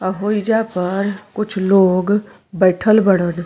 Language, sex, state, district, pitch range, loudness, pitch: Bhojpuri, female, Uttar Pradesh, Deoria, 185-210 Hz, -16 LUFS, 195 Hz